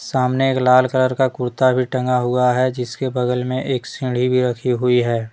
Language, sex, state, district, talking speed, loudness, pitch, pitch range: Hindi, male, Jharkhand, Deoghar, 215 wpm, -18 LUFS, 125 Hz, 125-130 Hz